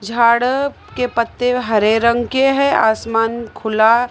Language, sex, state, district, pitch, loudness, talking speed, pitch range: Hindi, male, Maharashtra, Mumbai Suburban, 235 Hz, -16 LUFS, 130 wpm, 225-250 Hz